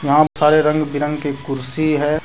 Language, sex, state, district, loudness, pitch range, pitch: Hindi, male, Jharkhand, Deoghar, -17 LUFS, 145-155 Hz, 150 Hz